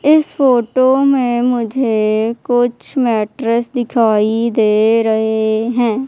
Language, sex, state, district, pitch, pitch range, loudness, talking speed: Hindi, female, Madhya Pradesh, Umaria, 235 Hz, 220-250 Hz, -14 LUFS, 100 wpm